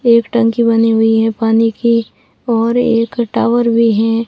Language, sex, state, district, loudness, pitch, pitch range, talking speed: Hindi, female, Rajasthan, Barmer, -13 LUFS, 230 Hz, 225-235 Hz, 170 wpm